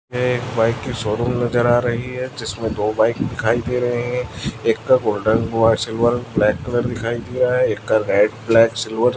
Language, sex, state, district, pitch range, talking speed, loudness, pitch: Hindi, male, Chhattisgarh, Raipur, 110-125 Hz, 210 wpm, -19 LUFS, 120 Hz